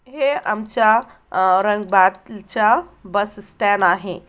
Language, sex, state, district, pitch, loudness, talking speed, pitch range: Marathi, female, Maharashtra, Aurangabad, 205 Hz, -18 LUFS, 110 wpm, 190-220 Hz